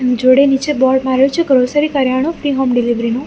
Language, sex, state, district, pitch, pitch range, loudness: Gujarati, female, Gujarat, Gandhinagar, 265 Hz, 255-280 Hz, -13 LUFS